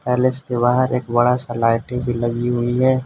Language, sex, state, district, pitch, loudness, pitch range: Hindi, male, Arunachal Pradesh, Lower Dibang Valley, 120 Hz, -19 LUFS, 120-125 Hz